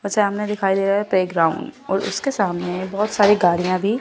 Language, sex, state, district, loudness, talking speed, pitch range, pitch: Hindi, female, Chandigarh, Chandigarh, -20 LUFS, 240 wpm, 185-210 Hz, 200 Hz